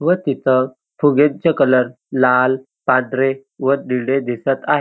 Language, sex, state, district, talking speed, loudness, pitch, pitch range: Marathi, male, Maharashtra, Dhule, 125 wpm, -17 LUFS, 135 Hz, 130-140 Hz